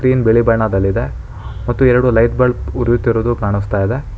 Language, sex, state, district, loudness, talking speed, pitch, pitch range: Kannada, male, Karnataka, Bangalore, -15 LUFS, 145 wpm, 115 Hz, 105-125 Hz